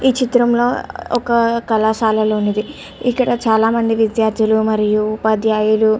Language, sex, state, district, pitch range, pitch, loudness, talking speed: Telugu, female, Andhra Pradesh, Chittoor, 215-240 Hz, 220 Hz, -16 LUFS, 100 wpm